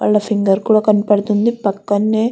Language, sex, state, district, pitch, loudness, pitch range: Telugu, female, Andhra Pradesh, Guntur, 210 Hz, -15 LUFS, 205-215 Hz